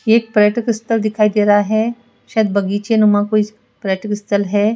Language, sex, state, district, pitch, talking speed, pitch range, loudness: Hindi, female, Rajasthan, Jaipur, 215 Hz, 165 wpm, 205-225 Hz, -16 LUFS